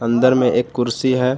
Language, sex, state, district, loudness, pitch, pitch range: Hindi, male, Jharkhand, Palamu, -17 LUFS, 125 Hz, 120-130 Hz